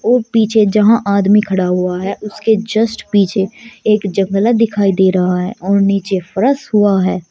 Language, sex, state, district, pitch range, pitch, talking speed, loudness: Hindi, female, Uttar Pradesh, Shamli, 190-220 Hz, 200 Hz, 170 wpm, -14 LUFS